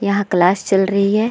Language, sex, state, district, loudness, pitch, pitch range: Hindi, female, Bihar, Vaishali, -16 LUFS, 200 Hz, 195-200 Hz